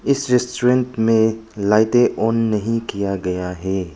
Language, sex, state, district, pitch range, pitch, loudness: Hindi, male, Arunachal Pradesh, Papum Pare, 100-120 Hz, 110 Hz, -18 LUFS